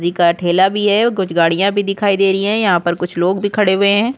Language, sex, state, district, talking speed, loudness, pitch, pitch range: Hindi, female, Chhattisgarh, Korba, 300 wpm, -15 LUFS, 195 Hz, 175-205 Hz